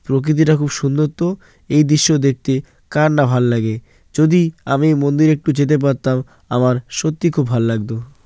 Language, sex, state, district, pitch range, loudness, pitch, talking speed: Bengali, male, West Bengal, Jalpaiguri, 130-155 Hz, -16 LUFS, 145 Hz, 150 wpm